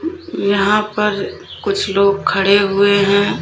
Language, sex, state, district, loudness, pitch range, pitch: Hindi, female, Uttar Pradesh, Lalitpur, -15 LUFS, 200-210 Hz, 200 Hz